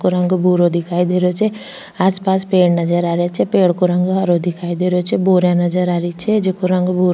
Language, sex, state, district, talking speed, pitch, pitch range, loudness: Rajasthani, female, Rajasthan, Nagaur, 260 wpm, 180 Hz, 175-185 Hz, -16 LUFS